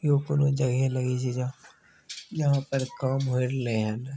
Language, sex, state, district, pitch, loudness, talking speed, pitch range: Maithili, male, Bihar, Begusarai, 130 Hz, -27 LUFS, 130 wpm, 125-140 Hz